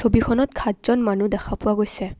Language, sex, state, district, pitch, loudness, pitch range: Assamese, female, Assam, Kamrup Metropolitan, 210 Hz, -21 LUFS, 205-240 Hz